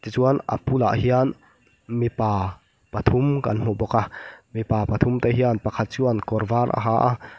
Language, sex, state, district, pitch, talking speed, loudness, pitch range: Mizo, male, Mizoram, Aizawl, 115 Hz, 180 wpm, -22 LUFS, 110-125 Hz